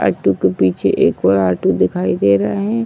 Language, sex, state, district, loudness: Hindi, female, Uttar Pradesh, Ghazipur, -15 LUFS